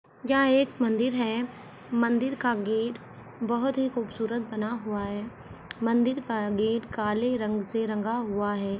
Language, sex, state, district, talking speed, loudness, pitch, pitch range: Hindi, female, Jharkhand, Jamtara, 150 wpm, -28 LUFS, 230 Hz, 215-245 Hz